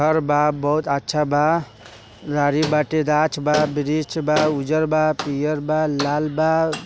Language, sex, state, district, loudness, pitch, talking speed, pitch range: Bhojpuri, male, Bihar, East Champaran, -20 LUFS, 150 Hz, 130 wpm, 145-155 Hz